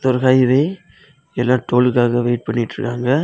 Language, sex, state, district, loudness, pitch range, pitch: Tamil, male, Tamil Nadu, Kanyakumari, -17 LUFS, 120-135 Hz, 125 Hz